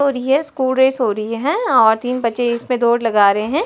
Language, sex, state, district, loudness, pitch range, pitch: Hindi, female, Chhattisgarh, Jashpur, -16 LUFS, 230-265 Hz, 245 Hz